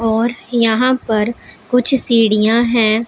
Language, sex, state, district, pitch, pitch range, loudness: Hindi, female, Punjab, Pathankot, 235 Hz, 220-245 Hz, -14 LUFS